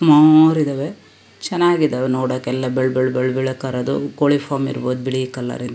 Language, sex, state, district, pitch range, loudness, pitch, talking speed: Kannada, female, Karnataka, Shimoga, 130-150 Hz, -18 LUFS, 130 Hz, 145 wpm